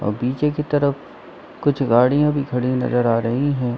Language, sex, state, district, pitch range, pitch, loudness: Hindi, male, Jharkhand, Sahebganj, 120-145 Hz, 130 Hz, -19 LUFS